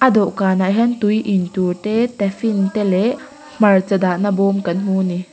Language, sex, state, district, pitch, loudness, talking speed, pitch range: Mizo, female, Mizoram, Aizawl, 200 Hz, -17 LUFS, 180 wpm, 190-220 Hz